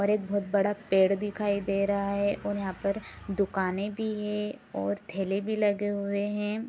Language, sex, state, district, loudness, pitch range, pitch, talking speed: Hindi, female, Bihar, Supaul, -29 LUFS, 195-210 Hz, 200 Hz, 190 wpm